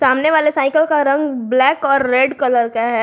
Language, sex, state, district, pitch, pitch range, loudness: Hindi, female, Jharkhand, Garhwa, 275 Hz, 255-295 Hz, -15 LUFS